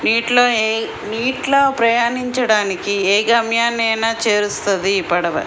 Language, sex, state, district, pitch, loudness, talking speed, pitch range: Telugu, female, Andhra Pradesh, Srikakulam, 225 Hz, -16 LUFS, 90 wpm, 205-235 Hz